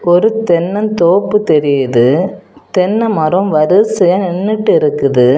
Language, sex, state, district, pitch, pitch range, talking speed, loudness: Tamil, female, Tamil Nadu, Kanyakumari, 180 Hz, 150-210 Hz, 100 wpm, -12 LUFS